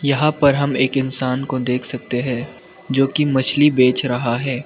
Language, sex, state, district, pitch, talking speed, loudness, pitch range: Hindi, male, Arunachal Pradesh, Lower Dibang Valley, 130 Hz, 195 wpm, -18 LUFS, 125-140 Hz